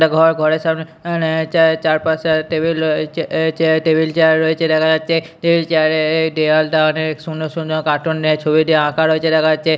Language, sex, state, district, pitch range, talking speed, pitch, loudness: Bengali, male, West Bengal, Purulia, 155-160 Hz, 195 wpm, 160 Hz, -16 LUFS